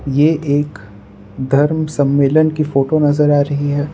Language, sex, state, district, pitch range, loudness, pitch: Hindi, male, Gujarat, Valsad, 140-150 Hz, -15 LUFS, 145 Hz